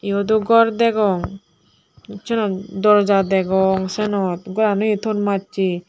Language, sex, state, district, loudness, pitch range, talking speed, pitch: Chakma, female, Tripura, Dhalai, -18 LUFS, 190-215 Hz, 120 wpm, 200 Hz